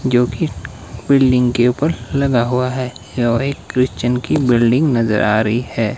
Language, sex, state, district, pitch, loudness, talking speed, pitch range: Hindi, male, Himachal Pradesh, Shimla, 125 Hz, -16 LUFS, 170 wpm, 115-130 Hz